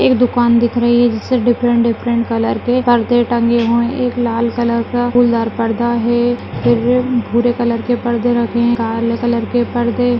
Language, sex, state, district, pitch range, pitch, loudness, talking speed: Hindi, female, Rajasthan, Nagaur, 235-240 Hz, 240 Hz, -15 LUFS, 190 wpm